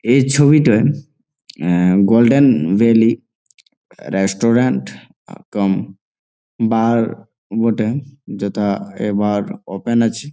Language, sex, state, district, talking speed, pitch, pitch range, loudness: Bengali, male, West Bengal, Jalpaiguri, 80 wpm, 115 Hz, 100-115 Hz, -16 LUFS